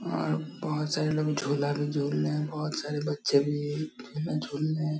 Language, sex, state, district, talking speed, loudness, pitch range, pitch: Hindi, male, Bihar, Darbhanga, 215 wpm, -30 LUFS, 145-155 Hz, 150 Hz